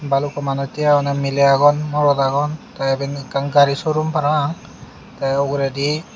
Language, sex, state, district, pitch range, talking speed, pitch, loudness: Chakma, male, Tripura, Unakoti, 140-150 Hz, 155 wpm, 140 Hz, -18 LUFS